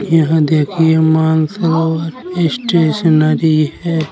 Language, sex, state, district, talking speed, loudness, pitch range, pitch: Bundeli, male, Uttar Pradesh, Jalaun, 75 wpm, -13 LUFS, 155-165 Hz, 160 Hz